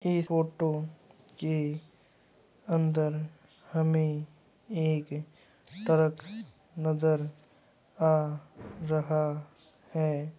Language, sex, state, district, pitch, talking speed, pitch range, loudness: Hindi, male, Uttar Pradesh, Muzaffarnagar, 155 Hz, 65 wpm, 150-160 Hz, -30 LUFS